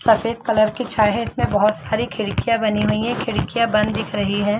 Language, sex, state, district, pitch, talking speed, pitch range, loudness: Hindi, female, Chhattisgarh, Balrampur, 215 Hz, 220 wpm, 210-230 Hz, -20 LUFS